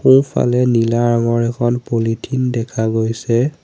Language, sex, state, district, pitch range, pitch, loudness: Assamese, male, Assam, Sonitpur, 115-125 Hz, 120 Hz, -16 LUFS